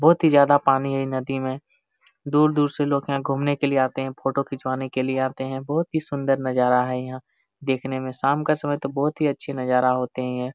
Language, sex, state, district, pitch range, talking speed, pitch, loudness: Hindi, male, Jharkhand, Jamtara, 130-145 Hz, 220 wpm, 135 Hz, -23 LUFS